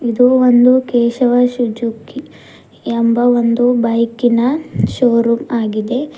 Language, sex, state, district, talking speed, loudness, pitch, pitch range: Kannada, female, Karnataka, Bidar, 95 wpm, -14 LUFS, 240 Hz, 235-250 Hz